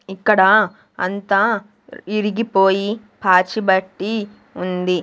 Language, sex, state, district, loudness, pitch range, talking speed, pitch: Telugu, female, Andhra Pradesh, Sri Satya Sai, -18 LUFS, 190-215 Hz, 70 wpm, 200 Hz